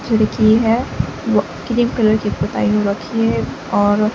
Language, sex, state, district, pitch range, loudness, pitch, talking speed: Hindi, female, Uttar Pradesh, Lalitpur, 200-225 Hz, -17 LUFS, 215 Hz, 160 wpm